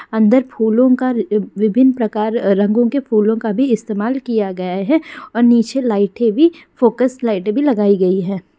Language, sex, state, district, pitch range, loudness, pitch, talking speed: Hindi, female, Bihar, Darbhanga, 210-255 Hz, -15 LUFS, 225 Hz, 170 wpm